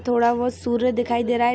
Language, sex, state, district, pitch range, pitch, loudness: Hindi, female, Jharkhand, Sahebganj, 240-245 Hz, 240 Hz, -22 LUFS